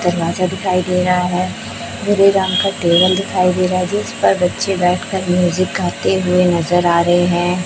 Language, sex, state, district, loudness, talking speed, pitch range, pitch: Hindi, male, Chhattisgarh, Raipur, -15 LUFS, 190 wpm, 175-185 Hz, 180 Hz